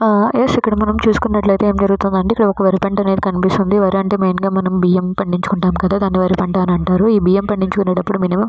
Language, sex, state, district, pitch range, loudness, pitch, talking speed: Telugu, female, Andhra Pradesh, Srikakulam, 185-205 Hz, -15 LUFS, 195 Hz, 185 wpm